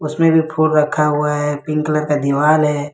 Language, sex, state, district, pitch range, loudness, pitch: Hindi, male, Jharkhand, Ranchi, 150-155 Hz, -16 LUFS, 150 Hz